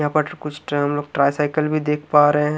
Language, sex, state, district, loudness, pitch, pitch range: Hindi, male, Haryana, Rohtak, -19 LUFS, 150 Hz, 145-150 Hz